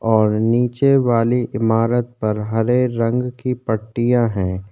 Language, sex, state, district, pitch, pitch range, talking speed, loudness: Hindi, male, Chhattisgarh, Korba, 115 Hz, 110-125 Hz, 125 wpm, -18 LUFS